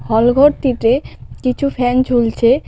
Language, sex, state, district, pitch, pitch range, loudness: Bengali, female, West Bengal, Cooch Behar, 250 Hz, 240-260 Hz, -15 LUFS